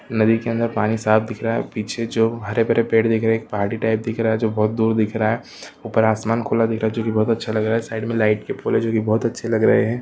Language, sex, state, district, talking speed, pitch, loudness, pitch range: Hindi, male, Jharkhand, Jamtara, 315 wpm, 115 Hz, -20 LUFS, 110-115 Hz